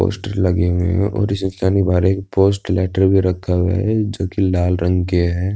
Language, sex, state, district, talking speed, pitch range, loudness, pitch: Hindi, male, Uttar Pradesh, Budaun, 185 wpm, 90-100 Hz, -17 LUFS, 95 Hz